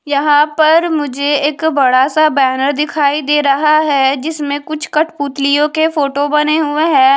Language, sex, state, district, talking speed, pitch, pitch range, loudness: Hindi, female, Haryana, Charkhi Dadri, 160 wpm, 295 Hz, 285-310 Hz, -13 LUFS